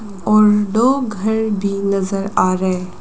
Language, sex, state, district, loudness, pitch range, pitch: Hindi, female, Arunachal Pradesh, Lower Dibang Valley, -16 LUFS, 195-215 Hz, 205 Hz